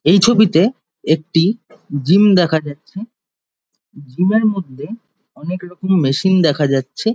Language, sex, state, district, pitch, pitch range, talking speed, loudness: Bengali, male, West Bengal, Jhargram, 180 Hz, 155-205 Hz, 110 wpm, -15 LUFS